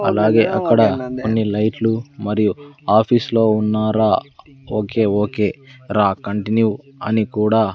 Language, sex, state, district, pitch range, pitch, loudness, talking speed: Telugu, male, Andhra Pradesh, Sri Satya Sai, 105-115 Hz, 110 Hz, -18 LUFS, 100 wpm